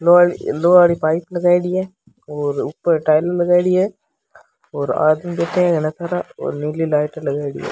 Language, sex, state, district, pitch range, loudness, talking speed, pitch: Rajasthani, male, Rajasthan, Nagaur, 155-175 Hz, -17 LUFS, 170 wpm, 170 Hz